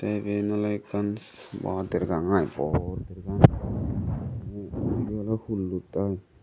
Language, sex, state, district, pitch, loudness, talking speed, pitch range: Chakma, male, Tripura, Dhalai, 105 Hz, -28 LUFS, 120 wpm, 95-110 Hz